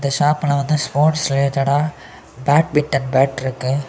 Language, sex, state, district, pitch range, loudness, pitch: Tamil, male, Tamil Nadu, Kanyakumari, 135-150 Hz, -18 LUFS, 140 Hz